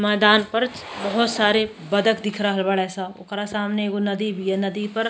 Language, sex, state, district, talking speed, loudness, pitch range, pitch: Bhojpuri, female, Uttar Pradesh, Ghazipur, 200 wpm, -22 LUFS, 200-215 Hz, 210 Hz